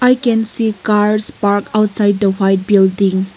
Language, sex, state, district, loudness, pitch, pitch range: English, female, Nagaland, Kohima, -14 LUFS, 210 Hz, 195-220 Hz